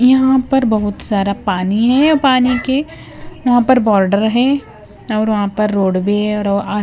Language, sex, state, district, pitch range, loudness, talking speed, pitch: Hindi, female, Bihar, West Champaran, 205-255 Hz, -14 LUFS, 160 wpm, 215 Hz